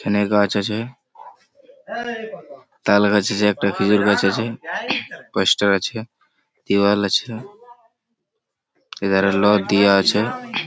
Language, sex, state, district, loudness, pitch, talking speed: Bengali, male, West Bengal, Malda, -19 LUFS, 105 Hz, 110 wpm